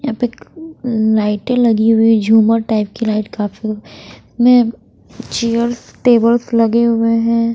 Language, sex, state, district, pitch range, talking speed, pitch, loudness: Hindi, female, Bihar, Patna, 220-240 Hz, 135 wpm, 230 Hz, -14 LUFS